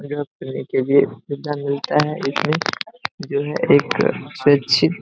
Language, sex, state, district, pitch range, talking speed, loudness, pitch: Hindi, male, Bihar, Begusarai, 140-145 Hz, 145 wpm, -20 LUFS, 140 Hz